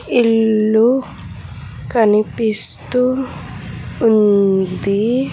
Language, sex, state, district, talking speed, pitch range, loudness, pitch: Telugu, female, Andhra Pradesh, Sri Satya Sai, 35 wpm, 195-235 Hz, -15 LUFS, 215 Hz